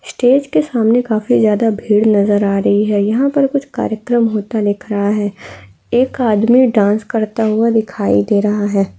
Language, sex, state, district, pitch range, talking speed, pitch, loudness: Hindi, female, Bihar, Araria, 205-240 Hz, 180 wpm, 215 Hz, -14 LUFS